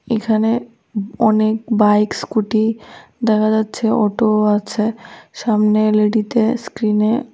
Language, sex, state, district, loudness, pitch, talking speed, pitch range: Bengali, female, Tripura, West Tripura, -17 LUFS, 220 Hz, 100 wpm, 215-225 Hz